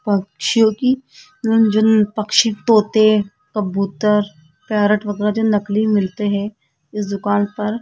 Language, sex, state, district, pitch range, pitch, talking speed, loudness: Hindi, female, Rajasthan, Jaipur, 205-220 Hz, 210 Hz, 125 wpm, -17 LUFS